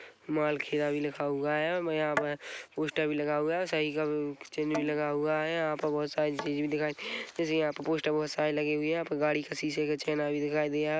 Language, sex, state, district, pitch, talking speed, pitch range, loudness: Hindi, male, Chhattisgarh, Korba, 150 Hz, 275 wpm, 150-155 Hz, -31 LUFS